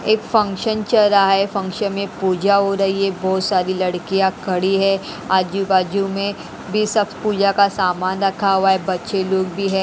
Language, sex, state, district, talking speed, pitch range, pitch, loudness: Hindi, female, Haryana, Rohtak, 190 wpm, 190-200 Hz, 195 Hz, -18 LUFS